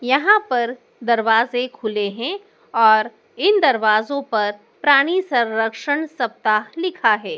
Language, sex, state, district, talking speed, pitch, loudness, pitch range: Hindi, male, Madhya Pradesh, Dhar, 115 wpm, 245 Hz, -18 LUFS, 225-310 Hz